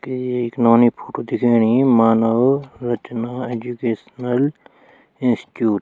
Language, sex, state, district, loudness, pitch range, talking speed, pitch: Garhwali, male, Uttarakhand, Tehri Garhwal, -18 LUFS, 115-125 Hz, 125 wpm, 120 Hz